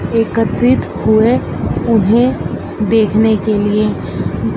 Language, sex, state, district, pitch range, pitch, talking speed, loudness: Hindi, female, Madhya Pradesh, Dhar, 215-230 Hz, 220 Hz, 80 wpm, -14 LUFS